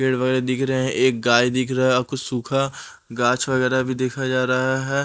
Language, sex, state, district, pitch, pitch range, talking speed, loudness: Hindi, male, Punjab, Pathankot, 130 Hz, 125-130 Hz, 250 wpm, -21 LUFS